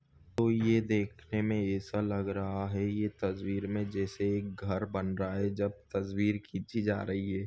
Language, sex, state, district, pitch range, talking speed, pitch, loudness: Hindi, male, Goa, North and South Goa, 95-105 Hz, 185 wpm, 100 Hz, -33 LUFS